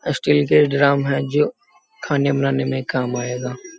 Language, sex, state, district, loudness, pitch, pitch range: Hindi, male, Bihar, Jamui, -19 LUFS, 135 Hz, 125-140 Hz